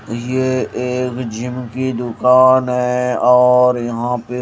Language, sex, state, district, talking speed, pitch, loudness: Hindi, male, Odisha, Malkangiri, 120 wpm, 125 Hz, -15 LUFS